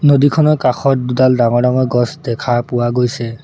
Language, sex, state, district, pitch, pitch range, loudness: Assamese, male, Assam, Sonitpur, 125 Hz, 120-135 Hz, -14 LUFS